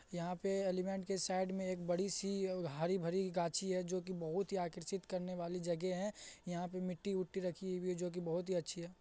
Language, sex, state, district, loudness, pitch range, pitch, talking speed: Hindi, male, Bihar, Saharsa, -40 LUFS, 175-190 Hz, 185 Hz, 240 wpm